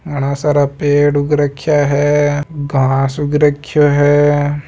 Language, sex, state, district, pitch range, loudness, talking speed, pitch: Marwari, male, Rajasthan, Nagaur, 145-150 Hz, -14 LUFS, 130 wpm, 145 Hz